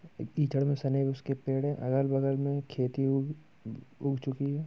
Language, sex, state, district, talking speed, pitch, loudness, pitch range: Hindi, male, Bihar, Muzaffarpur, 155 wpm, 135 Hz, -31 LUFS, 135-140 Hz